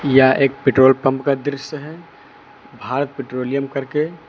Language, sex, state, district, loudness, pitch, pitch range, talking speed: Hindi, male, Uttar Pradesh, Lucknow, -18 LUFS, 140 Hz, 135-145 Hz, 140 wpm